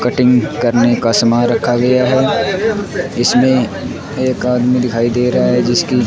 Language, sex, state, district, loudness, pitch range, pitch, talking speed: Hindi, male, Rajasthan, Bikaner, -14 LUFS, 120-130 Hz, 125 Hz, 160 wpm